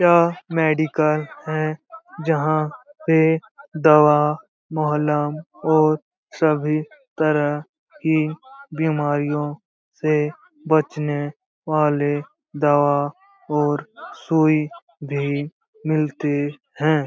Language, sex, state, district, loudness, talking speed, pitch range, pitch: Hindi, male, Bihar, Jamui, -21 LUFS, 75 wpm, 150-160 Hz, 155 Hz